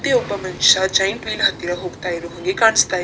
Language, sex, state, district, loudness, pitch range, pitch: Kannada, female, Karnataka, Dakshina Kannada, -18 LUFS, 175-210 Hz, 190 Hz